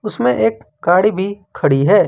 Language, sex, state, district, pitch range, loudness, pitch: Hindi, male, Jharkhand, Ranchi, 125-200 Hz, -16 LUFS, 170 Hz